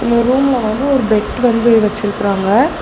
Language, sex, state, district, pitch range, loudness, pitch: Tamil, female, Tamil Nadu, Nilgiris, 210-250 Hz, -14 LUFS, 230 Hz